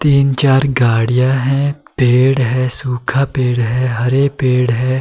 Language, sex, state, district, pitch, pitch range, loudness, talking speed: Hindi, male, Himachal Pradesh, Shimla, 130 Hz, 125-135 Hz, -14 LUFS, 145 wpm